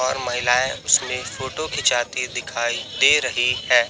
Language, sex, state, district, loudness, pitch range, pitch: Hindi, male, Chhattisgarh, Raipur, -20 LUFS, 125-130 Hz, 125 Hz